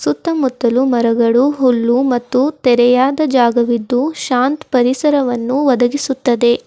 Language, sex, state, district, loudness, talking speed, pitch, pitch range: Kannada, female, Karnataka, Bidar, -14 LUFS, 90 wpm, 250 Hz, 240-270 Hz